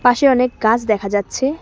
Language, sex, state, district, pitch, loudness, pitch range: Bengali, female, West Bengal, Cooch Behar, 245 Hz, -16 LUFS, 215-260 Hz